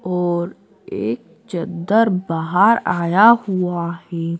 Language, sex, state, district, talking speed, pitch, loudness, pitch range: Hindi, female, Madhya Pradesh, Dhar, 95 wpm, 180 Hz, -18 LUFS, 170-200 Hz